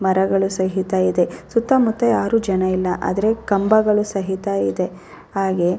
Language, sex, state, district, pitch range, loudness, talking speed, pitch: Kannada, female, Karnataka, Raichur, 185-210 Hz, -19 LUFS, 145 wpm, 195 Hz